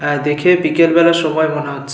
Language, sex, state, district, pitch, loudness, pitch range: Bengali, male, West Bengal, Paschim Medinipur, 155 Hz, -14 LUFS, 145-170 Hz